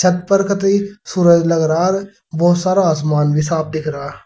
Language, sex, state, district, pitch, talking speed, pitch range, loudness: Hindi, male, Uttar Pradesh, Saharanpur, 175 Hz, 140 wpm, 155-195 Hz, -16 LUFS